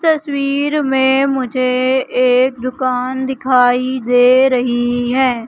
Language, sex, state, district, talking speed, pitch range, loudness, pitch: Hindi, female, Madhya Pradesh, Katni, 100 wpm, 250-265 Hz, -14 LUFS, 255 Hz